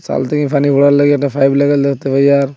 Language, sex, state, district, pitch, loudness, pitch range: Bengali, male, Assam, Hailakandi, 140 Hz, -12 LUFS, 140-145 Hz